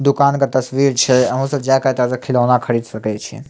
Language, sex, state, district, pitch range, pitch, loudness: Maithili, male, Bihar, Samastipur, 125-140 Hz, 130 Hz, -16 LUFS